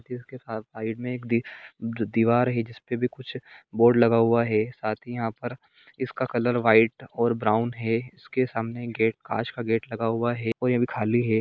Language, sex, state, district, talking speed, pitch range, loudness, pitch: Hindi, male, Jharkhand, Sahebganj, 195 wpm, 115-125 Hz, -25 LUFS, 115 Hz